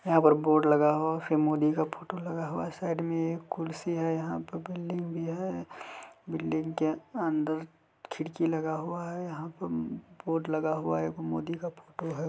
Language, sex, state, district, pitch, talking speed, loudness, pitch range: Hindi, male, Bihar, Kishanganj, 160 Hz, 195 wpm, -31 LUFS, 155-170 Hz